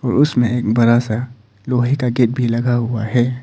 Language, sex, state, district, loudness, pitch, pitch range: Hindi, male, Arunachal Pradesh, Papum Pare, -17 LUFS, 120 Hz, 115-125 Hz